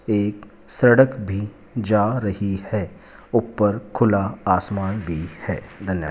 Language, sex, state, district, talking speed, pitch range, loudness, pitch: Hindi, male, Rajasthan, Jaipur, 125 wpm, 95-110 Hz, -22 LUFS, 105 Hz